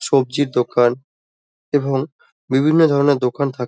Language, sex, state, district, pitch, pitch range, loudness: Bengali, male, West Bengal, Dakshin Dinajpur, 135 Hz, 120-145 Hz, -18 LUFS